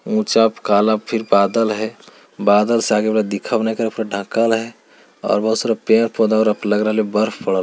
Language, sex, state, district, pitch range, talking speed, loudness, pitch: Hindi, male, Bihar, Jamui, 105-115 Hz, 100 wpm, -17 LUFS, 110 Hz